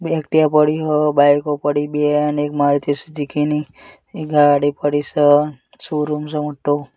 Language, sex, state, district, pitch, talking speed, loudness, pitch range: Gujarati, male, Gujarat, Gandhinagar, 150 Hz, 155 wpm, -17 LUFS, 145-150 Hz